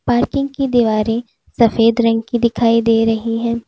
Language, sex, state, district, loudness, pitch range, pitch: Hindi, female, Uttar Pradesh, Lalitpur, -16 LUFS, 225-240 Hz, 230 Hz